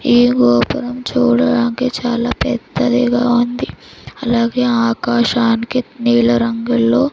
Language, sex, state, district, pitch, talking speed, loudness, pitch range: Telugu, female, Andhra Pradesh, Sri Satya Sai, 240 Hz, 85 wpm, -15 LUFS, 230-245 Hz